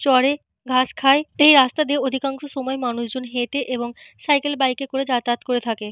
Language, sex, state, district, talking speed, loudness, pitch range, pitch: Bengali, female, Jharkhand, Jamtara, 185 wpm, -20 LUFS, 250-280 Hz, 265 Hz